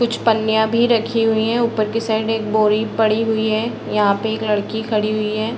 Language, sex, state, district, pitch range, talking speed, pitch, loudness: Hindi, female, Uttar Pradesh, Deoria, 215-225 Hz, 225 wpm, 220 Hz, -18 LUFS